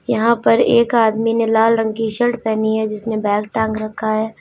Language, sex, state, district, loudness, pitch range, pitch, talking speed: Hindi, female, Uttar Pradesh, Lalitpur, -17 LUFS, 215-230 Hz, 220 Hz, 215 wpm